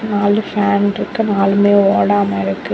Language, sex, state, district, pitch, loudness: Tamil, female, Tamil Nadu, Kanyakumari, 200 Hz, -14 LUFS